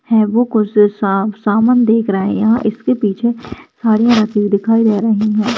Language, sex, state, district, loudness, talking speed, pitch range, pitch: Hindi, female, Rajasthan, Churu, -14 LUFS, 185 wpm, 210-230 Hz, 220 Hz